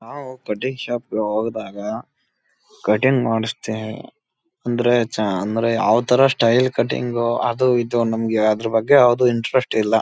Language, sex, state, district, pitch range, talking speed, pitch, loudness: Kannada, male, Karnataka, Chamarajanagar, 110-125 Hz, 125 wpm, 115 Hz, -19 LUFS